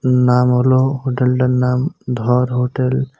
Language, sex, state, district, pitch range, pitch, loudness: Bengali, male, West Bengal, Cooch Behar, 125-130 Hz, 125 Hz, -16 LUFS